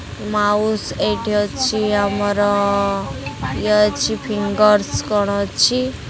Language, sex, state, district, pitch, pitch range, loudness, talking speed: Odia, female, Odisha, Khordha, 210 Hz, 205-215 Hz, -18 LUFS, 90 wpm